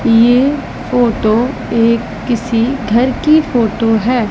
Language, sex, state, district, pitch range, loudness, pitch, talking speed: Hindi, female, Punjab, Pathankot, 230-250 Hz, -13 LUFS, 235 Hz, 110 wpm